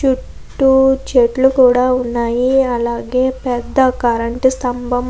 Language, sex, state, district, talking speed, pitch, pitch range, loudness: Telugu, female, Andhra Pradesh, Krishna, 105 wpm, 255 Hz, 245-260 Hz, -15 LUFS